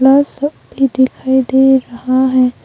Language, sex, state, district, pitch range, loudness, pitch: Hindi, female, Arunachal Pradesh, Longding, 255-270 Hz, -13 LUFS, 265 Hz